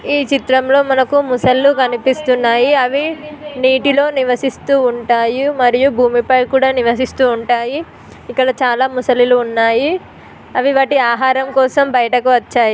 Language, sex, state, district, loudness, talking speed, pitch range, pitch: Telugu, female, Telangana, Nalgonda, -13 LUFS, 120 wpm, 245-275 Hz, 260 Hz